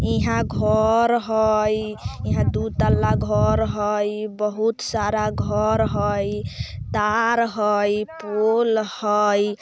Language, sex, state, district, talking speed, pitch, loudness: Bajjika, female, Bihar, Vaishali, 105 wpm, 210 Hz, -21 LUFS